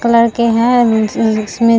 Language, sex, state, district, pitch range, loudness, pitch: Hindi, female, Bihar, Vaishali, 220-235 Hz, -13 LUFS, 230 Hz